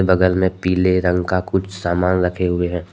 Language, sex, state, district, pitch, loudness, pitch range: Hindi, male, Jharkhand, Deoghar, 90 Hz, -18 LUFS, 90-95 Hz